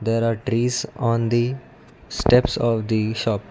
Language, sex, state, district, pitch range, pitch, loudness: English, male, Karnataka, Bangalore, 115-125 Hz, 115 Hz, -21 LUFS